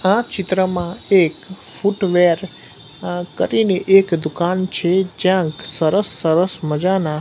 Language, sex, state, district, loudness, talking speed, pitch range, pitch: Gujarati, male, Gujarat, Gandhinagar, -18 LUFS, 110 wpm, 170-190 Hz, 185 Hz